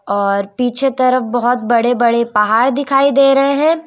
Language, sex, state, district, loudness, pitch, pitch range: Hindi, female, Madhya Pradesh, Umaria, -14 LUFS, 245 Hz, 235-275 Hz